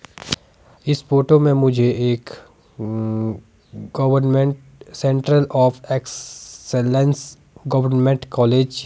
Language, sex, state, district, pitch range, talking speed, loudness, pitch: Hindi, male, Himachal Pradesh, Shimla, 125-140 Hz, 90 wpm, -19 LUFS, 135 Hz